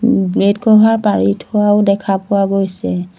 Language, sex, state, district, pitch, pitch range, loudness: Assamese, female, Assam, Sonitpur, 195 Hz, 180-210 Hz, -13 LUFS